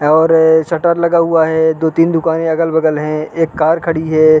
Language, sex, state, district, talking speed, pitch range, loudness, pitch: Hindi, male, Uttarakhand, Uttarkashi, 175 wpm, 160-165 Hz, -13 LUFS, 160 Hz